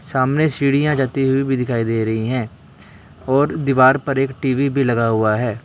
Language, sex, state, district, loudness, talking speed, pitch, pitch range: Hindi, male, Karnataka, Bangalore, -18 LUFS, 190 wpm, 130 Hz, 115-135 Hz